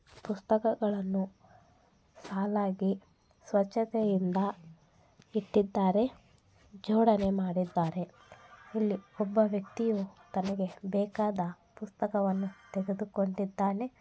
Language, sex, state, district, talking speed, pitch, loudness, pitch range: Kannada, female, Karnataka, Bellary, 55 wpm, 200 Hz, -32 LUFS, 190-215 Hz